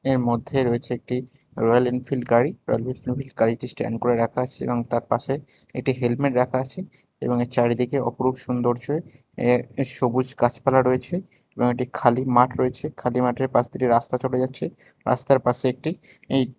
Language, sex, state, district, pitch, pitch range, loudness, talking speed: Bengali, male, Tripura, West Tripura, 125 Hz, 120-130 Hz, -23 LUFS, 160 wpm